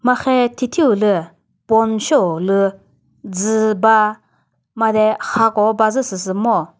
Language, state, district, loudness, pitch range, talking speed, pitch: Chakhesang, Nagaland, Dimapur, -16 LUFS, 195-225 Hz, 130 wpm, 220 Hz